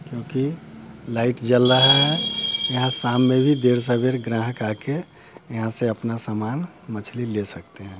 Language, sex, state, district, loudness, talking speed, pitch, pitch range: Hindi, male, Bihar, Muzaffarpur, -20 LUFS, 155 wpm, 120 Hz, 115-135 Hz